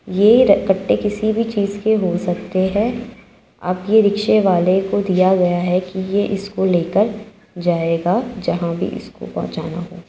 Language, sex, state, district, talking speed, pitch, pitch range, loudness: Hindi, female, Uttar Pradesh, Jyotiba Phule Nagar, 165 wpm, 190 Hz, 180-210 Hz, -17 LUFS